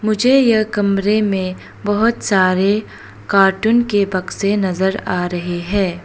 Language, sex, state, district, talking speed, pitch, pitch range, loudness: Hindi, female, Arunachal Pradesh, Papum Pare, 130 wpm, 200 Hz, 185-215 Hz, -16 LUFS